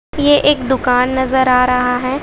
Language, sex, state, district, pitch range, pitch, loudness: Hindi, female, Bihar, West Champaran, 250-270 Hz, 260 Hz, -13 LUFS